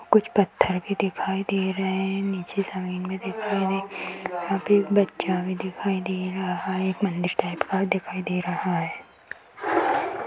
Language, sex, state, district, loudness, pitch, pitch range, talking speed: Hindi, female, Uttar Pradesh, Jyotiba Phule Nagar, -26 LUFS, 190 Hz, 185-200 Hz, 170 wpm